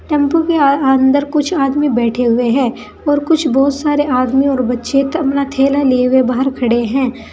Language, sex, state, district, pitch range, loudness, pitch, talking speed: Hindi, female, Uttar Pradesh, Saharanpur, 250-290 Hz, -14 LUFS, 270 Hz, 190 wpm